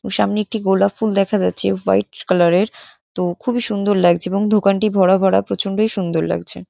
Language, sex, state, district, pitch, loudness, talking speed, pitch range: Bengali, female, West Bengal, North 24 Parganas, 195 Hz, -17 LUFS, 190 wpm, 175-210 Hz